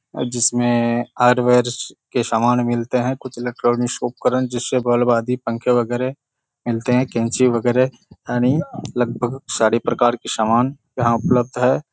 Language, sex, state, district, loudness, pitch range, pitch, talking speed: Hindi, male, Bihar, Kishanganj, -19 LUFS, 120-125 Hz, 120 Hz, 130 wpm